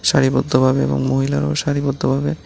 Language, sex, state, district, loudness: Bengali, male, Tripura, West Tripura, -18 LUFS